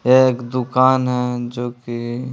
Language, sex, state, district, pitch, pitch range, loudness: Hindi, male, Bihar, Patna, 125 Hz, 120-130 Hz, -18 LUFS